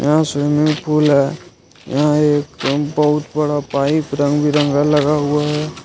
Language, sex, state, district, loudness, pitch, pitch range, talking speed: Hindi, male, Jharkhand, Ranchi, -16 LUFS, 150 Hz, 145-150 Hz, 115 wpm